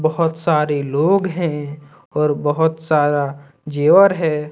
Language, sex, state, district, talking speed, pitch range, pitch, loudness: Hindi, male, Jharkhand, Deoghar, 120 wpm, 145-160 Hz, 150 Hz, -17 LUFS